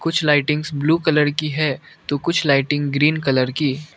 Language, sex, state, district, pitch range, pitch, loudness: Hindi, male, Arunachal Pradesh, Lower Dibang Valley, 145-155 Hz, 150 Hz, -19 LUFS